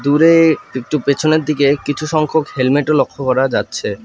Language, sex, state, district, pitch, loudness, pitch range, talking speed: Bengali, male, West Bengal, Alipurduar, 145 Hz, -15 LUFS, 140-155 Hz, 165 wpm